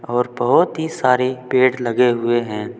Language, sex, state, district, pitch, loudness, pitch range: Hindi, male, Uttar Pradesh, Saharanpur, 125 Hz, -17 LUFS, 120-130 Hz